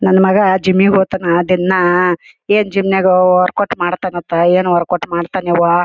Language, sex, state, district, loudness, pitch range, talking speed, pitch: Kannada, female, Karnataka, Gulbarga, -13 LUFS, 175-190 Hz, 145 wpm, 185 Hz